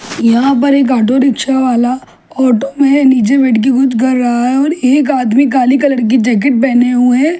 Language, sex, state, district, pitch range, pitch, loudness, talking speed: Hindi, female, Delhi, New Delhi, 245-275 Hz, 260 Hz, -10 LUFS, 205 wpm